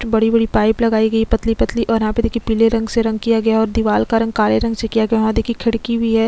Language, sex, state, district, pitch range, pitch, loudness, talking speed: Hindi, female, Chhattisgarh, Sukma, 225-230 Hz, 225 Hz, -16 LUFS, 335 wpm